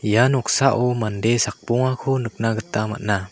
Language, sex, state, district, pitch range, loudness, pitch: Garo, male, Meghalaya, South Garo Hills, 105-125 Hz, -21 LUFS, 115 Hz